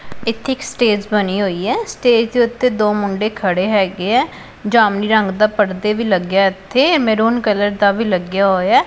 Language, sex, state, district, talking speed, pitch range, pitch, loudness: Punjabi, female, Punjab, Pathankot, 180 wpm, 195-235 Hz, 210 Hz, -16 LUFS